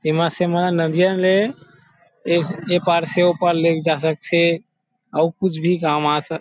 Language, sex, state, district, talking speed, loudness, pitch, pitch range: Chhattisgarhi, male, Chhattisgarh, Rajnandgaon, 185 wpm, -19 LUFS, 170 Hz, 165-180 Hz